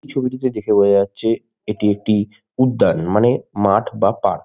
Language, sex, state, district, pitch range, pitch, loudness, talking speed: Bengali, male, West Bengal, Malda, 105-130 Hz, 110 Hz, -18 LUFS, 160 wpm